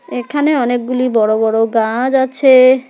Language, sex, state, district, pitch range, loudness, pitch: Bengali, female, West Bengal, Alipurduar, 225-265 Hz, -13 LUFS, 255 Hz